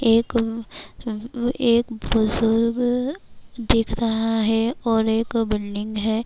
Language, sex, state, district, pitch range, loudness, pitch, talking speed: Urdu, female, Bihar, Kishanganj, 220-235 Hz, -22 LUFS, 230 Hz, 85 wpm